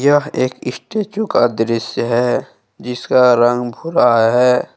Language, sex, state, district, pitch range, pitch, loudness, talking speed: Hindi, male, Jharkhand, Deoghar, 120-140 Hz, 125 Hz, -15 LUFS, 115 wpm